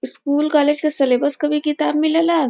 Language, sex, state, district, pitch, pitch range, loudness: Bhojpuri, female, Uttar Pradesh, Varanasi, 300 Hz, 285-305 Hz, -18 LUFS